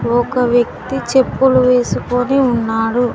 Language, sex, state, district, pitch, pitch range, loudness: Telugu, female, Telangana, Mahabubabad, 245 Hz, 240-260 Hz, -15 LUFS